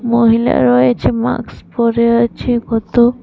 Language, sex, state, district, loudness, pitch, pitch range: Bengali, female, Tripura, West Tripura, -14 LUFS, 235 Hz, 230-235 Hz